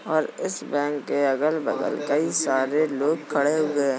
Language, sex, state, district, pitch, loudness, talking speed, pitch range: Hindi, male, Uttar Pradesh, Jalaun, 145 Hz, -24 LUFS, 180 wpm, 140-155 Hz